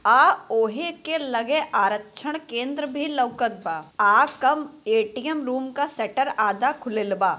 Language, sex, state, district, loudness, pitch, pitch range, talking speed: Bhojpuri, female, Bihar, Gopalganj, -23 LUFS, 265 Hz, 225-300 Hz, 130 wpm